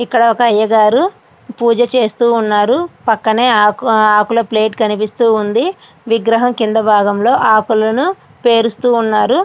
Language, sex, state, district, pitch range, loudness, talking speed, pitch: Telugu, female, Andhra Pradesh, Srikakulam, 215-240 Hz, -13 LUFS, 110 wpm, 230 Hz